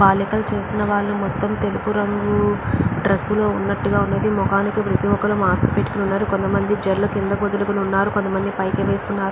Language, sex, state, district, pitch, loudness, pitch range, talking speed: Telugu, female, Andhra Pradesh, Chittoor, 195 Hz, -20 LUFS, 190-205 Hz, 155 wpm